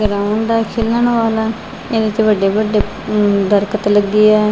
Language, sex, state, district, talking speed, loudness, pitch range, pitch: Punjabi, female, Punjab, Fazilka, 105 wpm, -15 LUFS, 205-225 Hz, 215 Hz